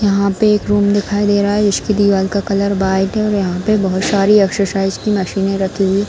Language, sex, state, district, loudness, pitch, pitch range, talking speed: Hindi, female, Bihar, Darbhanga, -15 LUFS, 200 Hz, 195-205 Hz, 245 wpm